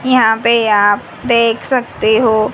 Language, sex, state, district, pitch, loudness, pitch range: Hindi, female, Haryana, Jhajjar, 230 Hz, -13 LUFS, 220-240 Hz